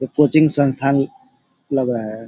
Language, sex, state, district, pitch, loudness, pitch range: Hindi, male, Bihar, Sitamarhi, 140 Hz, -17 LUFS, 130-150 Hz